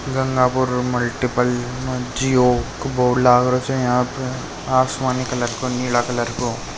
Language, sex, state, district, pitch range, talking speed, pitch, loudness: Marwari, male, Rajasthan, Nagaur, 125-130 Hz, 115 wpm, 125 Hz, -19 LUFS